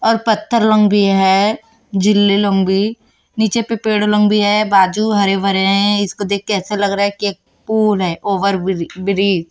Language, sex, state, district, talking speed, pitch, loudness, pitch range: Hindi, female, Chhattisgarh, Raipur, 185 wpm, 205 Hz, -15 LUFS, 195-215 Hz